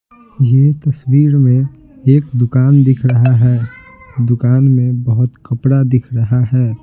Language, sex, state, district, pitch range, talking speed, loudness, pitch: Hindi, male, Bihar, Patna, 120-135 Hz, 130 wpm, -13 LUFS, 130 Hz